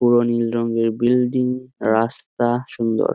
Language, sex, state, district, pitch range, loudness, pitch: Bengali, male, West Bengal, Jhargram, 115-125 Hz, -20 LUFS, 120 Hz